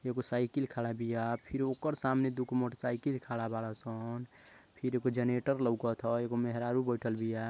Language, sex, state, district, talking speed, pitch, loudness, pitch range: Hindi, male, Uttar Pradesh, Ghazipur, 170 wpm, 120 Hz, -35 LUFS, 115-130 Hz